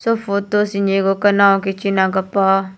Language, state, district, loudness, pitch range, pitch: Nyishi, Arunachal Pradesh, Papum Pare, -16 LUFS, 195-200 Hz, 195 Hz